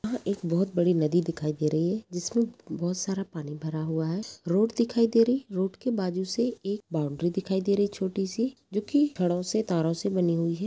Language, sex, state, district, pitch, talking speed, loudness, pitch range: Hindi, female, Uttar Pradesh, Jalaun, 190 Hz, 225 wpm, -28 LUFS, 170-215 Hz